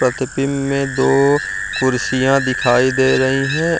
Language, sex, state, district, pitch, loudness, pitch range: Hindi, male, Bihar, Jamui, 135 Hz, -16 LUFS, 130-140 Hz